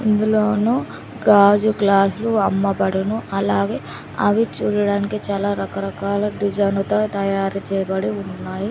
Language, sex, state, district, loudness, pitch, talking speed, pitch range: Telugu, female, Andhra Pradesh, Sri Satya Sai, -19 LUFS, 200 Hz, 105 wpm, 195-210 Hz